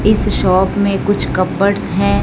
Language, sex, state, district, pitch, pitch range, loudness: Hindi, female, Punjab, Fazilka, 200 Hz, 185-205 Hz, -15 LUFS